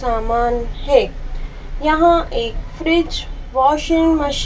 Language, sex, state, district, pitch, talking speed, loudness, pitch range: Hindi, female, Madhya Pradesh, Dhar, 310 Hz, 95 wpm, -17 LUFS, 260-335 Hz